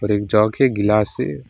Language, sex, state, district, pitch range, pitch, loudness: Hindi, male, West Bengal, Alipurduar, 105-110 Hz, 105 Hz, -18 LUFS